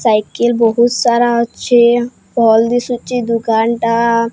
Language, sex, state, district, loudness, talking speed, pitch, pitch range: Odia, female, Odisha, Sambalpur, -13 LUFS, 95 wpm, 235 Hz, 230-240 Hz